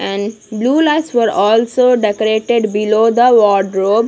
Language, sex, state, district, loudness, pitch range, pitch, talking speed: English, female, Punjab, Kapurthala, -13 LUFS, 210-240 Hz, 220 Hz, 130 wpm